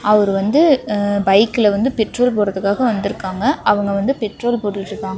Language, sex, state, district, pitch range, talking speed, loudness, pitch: Tamil, female, Tamil Nadu, Namakkal, 200-240 Hz, 125 wpm, -17 LUFS, 210 Hz